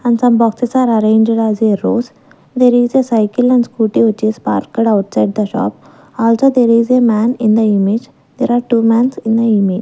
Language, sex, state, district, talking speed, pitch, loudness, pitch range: English, female, Maharashtra, Gondia, 215 wpm, 230 Hz, -13 LUFS, 220-245 Hz